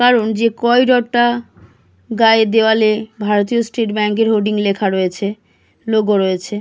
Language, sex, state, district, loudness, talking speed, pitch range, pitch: Bengali, female, West Bengal, Kolkata, -15 LUFS, 120 wpm, 205-230 Hz, 220 Hz